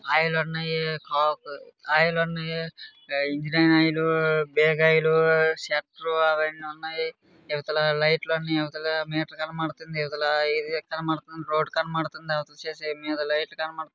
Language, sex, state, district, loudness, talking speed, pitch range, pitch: Telugu, male, Andhra Pradesh, Srikakulam, -25 LUFS, 105 wpm, 150-160 Hz, 160 Hz